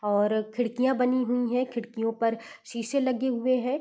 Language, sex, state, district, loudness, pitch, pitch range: Hindi, female, Bihar, East Champaran, -27 LUFS, 245 Hz, 225-255 Hz